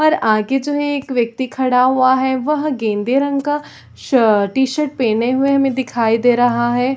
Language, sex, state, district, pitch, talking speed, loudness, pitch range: Hindi, female, Chhattisgarh, Raigarh, 260 Hz, 180 wpm, -16 LUFS, 240-275 Hz